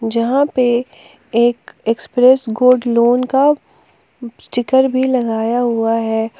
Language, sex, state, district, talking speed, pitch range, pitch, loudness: Hindi, female, Jharkhand, Palamu, 115 wpm, 230-255 Hz, 240 Hz, -15 LUFS